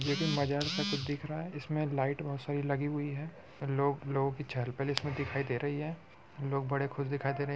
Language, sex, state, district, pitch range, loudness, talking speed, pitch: Hindi, male, Bihar, Muzaffarpur, 140-145 Hz, -34 LUFS, 270 wpm, 140 Hz